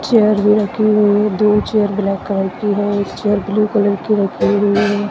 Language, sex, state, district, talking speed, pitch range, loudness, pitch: Hindi, female, Madhya Pradesh, Dhar, 225 wpm, 205-210 Hz, -15 LUFS, 205 Hz